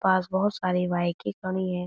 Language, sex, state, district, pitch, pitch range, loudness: Hindi, female, Uttar Pradesh, Budaun, 185 Hz, 180-185 Hz, -27 LUFS